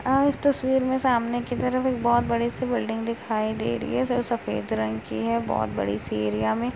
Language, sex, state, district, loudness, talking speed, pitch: Hindi, female, Uttar Pradesh, Etah, -25 LUFS, 215 wpm, 235 Hz